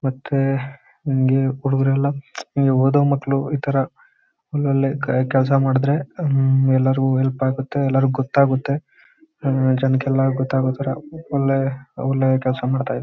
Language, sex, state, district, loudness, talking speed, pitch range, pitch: Kannada, male, Karnataka, Chamarajanagar, -20 LUFS, 120 wpm, 135-140 Hz, 135 Hz